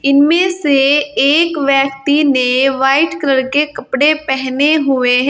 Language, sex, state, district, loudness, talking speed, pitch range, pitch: Hindi, female, Uttar Pradesh, Saharanpur, -13 LUFS, 135 wpm, 270-300 Hz, 280 Hz